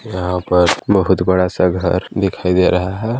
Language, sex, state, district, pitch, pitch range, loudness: Hindi, male, Chhattisgarh, Balrampur, 90 Hz, 90-95 Hz, -16 LUFS